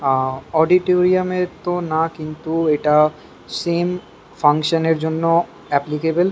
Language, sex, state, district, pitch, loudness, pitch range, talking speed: Bengali, male, West Bengal, Kolkata, 160 Hz, -19 LUFS, 150-175 Hz, 115 wpm